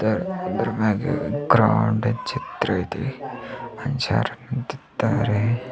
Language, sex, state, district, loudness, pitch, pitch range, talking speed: Kannada, male, Karnataka, Bidar, -23 LUFS, 115 Hz, 110-125 Hz, 85 wpm